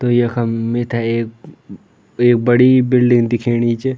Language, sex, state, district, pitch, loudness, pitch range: Garhwali, male, Uttarakhand, Tehri Garhwal, 120 Hz, -15 LUFS, 115-120 Hz